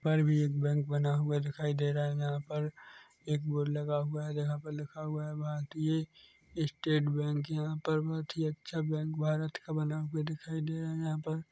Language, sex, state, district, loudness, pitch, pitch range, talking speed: Hindi, male, Chhattisgarh, Korba, -34 LUFS, 150 Hz, 150-155 Hz, 215 wpm